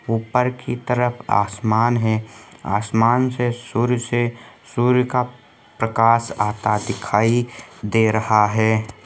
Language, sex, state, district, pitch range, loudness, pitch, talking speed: Hindi, male, Jharkhand, Sahebganj, 110-120 Hz, -20 LUFS, 115 Hz, 115 wpm